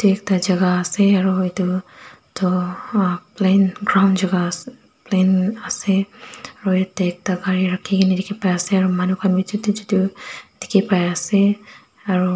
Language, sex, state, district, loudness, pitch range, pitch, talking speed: Nagamese, female, Nagaland, Dimapur, -19 LUFS, 185-200 Hz, 190 Hz, 120 wpm